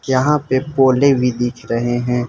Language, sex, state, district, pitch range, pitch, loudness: Hindi, male, Arunachal Pradesh, Lower Dibang Valley, 120-135 Hz, 130 Hz, -16 LUFS